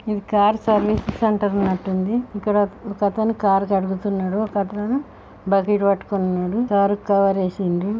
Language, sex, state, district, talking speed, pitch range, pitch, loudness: Telugu, female, Telangana, Nalgonda, 130 wpm, 195-210 Hz, 200 Hz, -20 LUFS